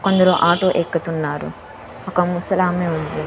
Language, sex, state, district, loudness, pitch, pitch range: Telugu, female, Andhra Pradesh, Sri Satya Sai, -19 LUFS, 175 Hz, 165-185 Hz